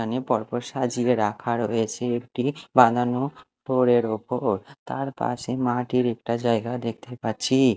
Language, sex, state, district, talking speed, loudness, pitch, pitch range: Bengali, male, Odisha, Malkangiri, 115 wpm, -24 LUFS, 120 Hz, 115-125 Hz